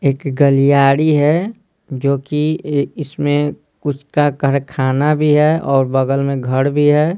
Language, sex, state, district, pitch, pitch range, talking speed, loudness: Hindi, male, Bihar, Patna, 145 Hz, 140-150 Hz, 135 wpm, -15 LUFS